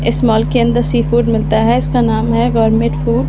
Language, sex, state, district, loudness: Hindi, female, Delhi, New Delhi, -13 LUFS